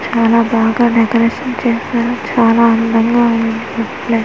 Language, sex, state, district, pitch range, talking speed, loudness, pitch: Telugu, female, Andhra Pradesh, Manyam, 230-235 Hz, 140 wpm, -13 LUFS, 230 Hz